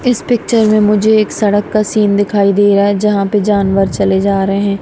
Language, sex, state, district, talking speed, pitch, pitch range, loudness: Hindi, female, Punjab, Kapurthala, 235 wpm, 205 Hz, 200-215 Hz, -12 LUFS